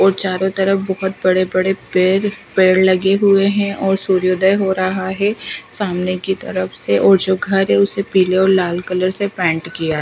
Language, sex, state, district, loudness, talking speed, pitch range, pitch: Hindi, female, Himachal Pradesh, Shimla, -16 LUFS, 190 wpm, 185-195 Hz, 190 Hz